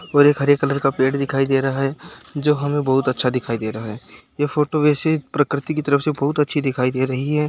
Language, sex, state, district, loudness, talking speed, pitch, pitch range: Hindi, male, Uttar Pradesh, Muzaffarnagar, -19 LUFS, 250 wpm, 140 Hz, 130-145 Hz